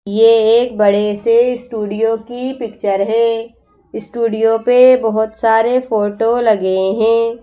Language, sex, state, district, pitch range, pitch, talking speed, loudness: Hindi, female, Madhya Pradesh, Bhopal, 215-235 Hz, 225 Hz, 120 wpm, -14 LUFS